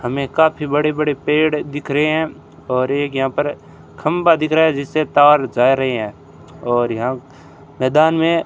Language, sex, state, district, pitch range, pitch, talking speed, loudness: Hindi, male, Rajasthan, Bikaner, 125-155 Hz, 145 Hz, 185 wpm, -17 LUFS